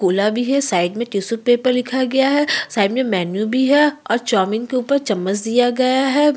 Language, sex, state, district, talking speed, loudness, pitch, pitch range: Hindi, female, Uttarakhand, Tehri Garhwal, 215 wpm, -17 LUFS, 245 Hz, 205-265 Hz